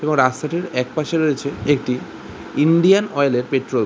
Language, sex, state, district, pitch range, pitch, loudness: Bengali, male, West Bengal, Kolkata, 130-160 Hz, 145 Hz, -19 LUFS